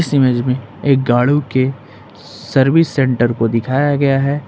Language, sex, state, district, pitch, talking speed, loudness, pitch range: Hindi, male, Jharkhand, Ranchi, 135 Hz, 145 wpm, -15 LUFS, 120-140 Hz